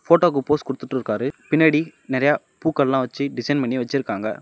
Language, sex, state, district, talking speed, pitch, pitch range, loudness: Tamil, male, Tamil Nadu, Namakkal, 135 wpm, 140 Hz, 130-150 Hz, -21 LUFS